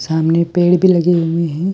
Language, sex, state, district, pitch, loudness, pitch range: Hindi, male, Delhi, New Delhi, 170 Hz, -14 LUFS, 165-175 Hz